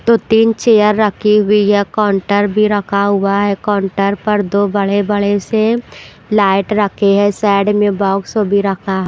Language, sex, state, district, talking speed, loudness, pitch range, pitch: Hindi, female, Punjab, Pathankot, 165 wpm, -13 LUFS, 200-210 Hz, 205 Hz